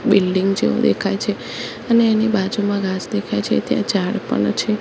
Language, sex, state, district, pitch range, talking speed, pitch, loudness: Gujarati, female, Gujarat, Gandhinagar, 190-215 Hz, 175 wpm, 200 Hz, -19 LUFS